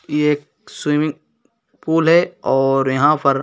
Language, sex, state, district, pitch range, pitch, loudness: Hindi, male, Uttar Pradesh, Hamirpur, 135-155 Hz, 150 Hz, -17 LUFS